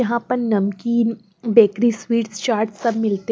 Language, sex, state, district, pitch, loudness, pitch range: Hindi, female, Bihar, West Champaran, 225 Hz, -19 LUFS, 215-235 Hz